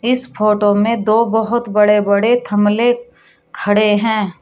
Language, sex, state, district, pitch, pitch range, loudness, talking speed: Hindi, female, Uttar Pradesh, Shamli, 215 Hz, 205-235 Hz, -15 LUFS, 135 wpm